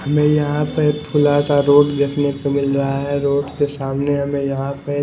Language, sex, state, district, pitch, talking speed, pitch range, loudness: Hindi, male, Chandigarh, Chandigarh, 145 Hz, 180 wpm, 140-145 Hz, -18 LUFS